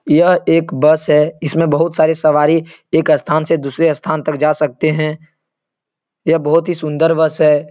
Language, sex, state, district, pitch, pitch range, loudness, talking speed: Hindi, male, Uttar Pradesh, Etah, 155 Hz, 150-165 Hz, -14 LUFS, 180 wpm